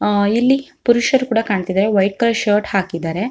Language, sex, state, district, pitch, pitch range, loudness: Kannada, female, Karnataka, Shimoga, 210 Hz, 195-235 Hz, -17 LUFS